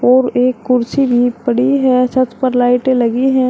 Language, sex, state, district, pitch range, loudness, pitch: Hindi, female, Uttar Pradesh, Shamli, 245-260 Hz, -13 LUFS, 250 Hz